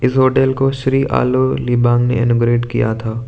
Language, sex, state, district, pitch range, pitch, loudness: Hindi, male, Arunachal Pradesh, Lower Dibang Valley, 120-130 Hz, 125 Hz, -15 LUFS